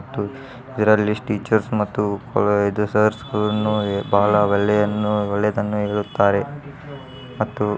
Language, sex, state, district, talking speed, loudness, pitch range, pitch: Kannada, male, Karnataka, Dharwad, 85 wpm, -20 LUFS, 105-115 Hz, 105 Hz